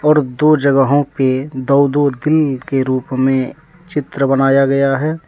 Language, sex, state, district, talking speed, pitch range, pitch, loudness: Hindi, male, Jharkhand, Deoghar, 115 wpm, 135-150 Hz, 140 Hz, -15 LUFS